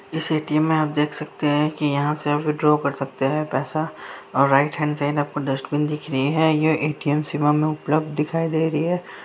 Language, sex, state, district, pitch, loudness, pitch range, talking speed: Hindi, male, Bihar, Saharsa, 150 Hz, -22 LUFS, 145-155 Hz, 225 wpm